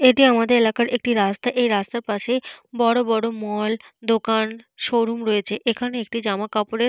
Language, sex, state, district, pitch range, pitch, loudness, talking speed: Bengali, female, Jharkhand, Jamtara, 215-245 Hz, 230 Hz, -21 LUFS, 155 wpm